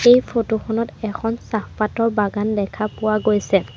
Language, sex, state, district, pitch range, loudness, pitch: Assamese, female, Assam, Sonitpur, 210-225 Hz, -20 LUFS, 215 Hz